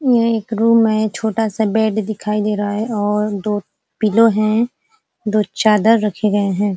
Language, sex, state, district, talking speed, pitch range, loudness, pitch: Hindi, female, Uttar Pradesh, Ghazipur, 175 wpm, 210-225 Hz, -17 LUFS, 215 Hz